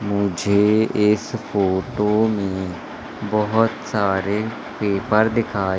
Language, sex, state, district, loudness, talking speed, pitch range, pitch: Hindi, male, Madhya Pradesh, Katni, -20 LUFS, 85 wpm, 100-110 Hz, 105 Hz